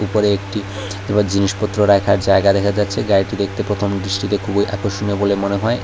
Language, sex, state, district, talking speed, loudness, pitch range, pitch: Bengali, male, Tripura, West Tripura, 175 wpm, -17 LUFS, 100-105 Hz, 100 Hz